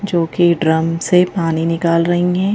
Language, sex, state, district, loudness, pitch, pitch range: Hindi, female, Madhya Pradesh, Bhopal, -15 LUFS, 170 Hz, 165-180 Hz